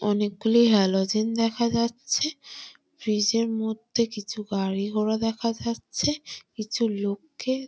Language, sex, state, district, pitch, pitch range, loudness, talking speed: Bengali, female, West Bengal, Malda, 225 Hz, 205-235 Hz, -25 LUFS, 115 wpm